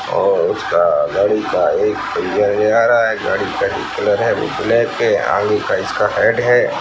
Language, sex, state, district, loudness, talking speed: Hindi, female, Bihar, Darbhanga, -16 LUFS, 165 wpm